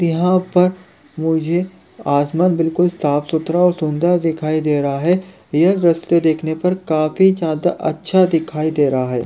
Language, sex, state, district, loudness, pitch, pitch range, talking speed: Hindi, male, Chhattisgarh, Kabirdham, -17 LUFS, 165 Hz, 155-180 Hz, 155 wpm